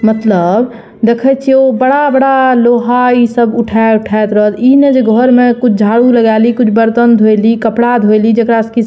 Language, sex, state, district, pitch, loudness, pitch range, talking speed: Maithili, female, Bihar, Purnia, 235 Hz, -9 LUFS, 220-250 Hz, 195 wpm